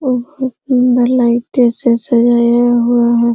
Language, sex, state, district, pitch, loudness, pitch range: Hindi, female, Uttar Pradesh, Hamirpur, 240 Hz, -12 LUFS, 235-250 Hz